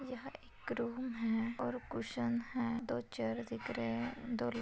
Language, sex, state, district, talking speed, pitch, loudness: Hindi, female, Maharashtra, Nagpur, 170 wpm, 230 Hz, -40 LUFS